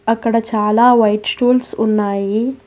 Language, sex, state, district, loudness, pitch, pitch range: Telugu, female, Telangana, Hyderabad, -15 LUFS, 225 Hz, 210-240 Hz